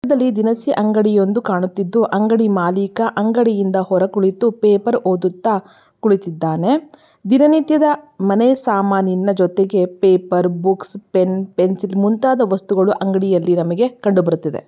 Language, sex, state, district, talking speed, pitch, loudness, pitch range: Kannada, female, Karnataka, Belgaum, 110 wpm, 200 Hz, -16 LUFS, 185-230 Hz